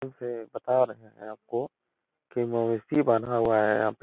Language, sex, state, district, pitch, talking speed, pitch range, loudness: Hindi, male, Uttar Pradesh, Etah, 115 Hz, 180 wpm, 110-125 Hz, -27 LUFS